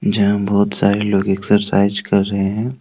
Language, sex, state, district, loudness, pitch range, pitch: Hindi, male, Jharkhand, Deoghar, -16 LUFS, 100-105 Hz, 100 Hz